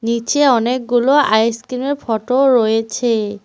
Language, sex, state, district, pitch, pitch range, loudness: Bengali, female, West Bengal, Cooch Behar, 240 Hz, 225-260 Hz, -15 LUFS